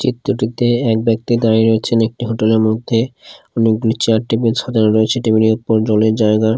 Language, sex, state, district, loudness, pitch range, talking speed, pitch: Bengali, male, Odisha, Khordha, -15 LUFS, 110-115 Hz, 175 wpm, 110 Hz